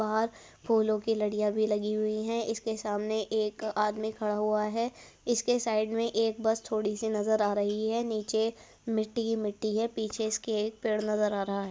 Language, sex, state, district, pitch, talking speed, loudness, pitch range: Hindi, female, Bihar, Araria, 220 Hz, 205 wpm, -30 LUFS, 210-225 Hz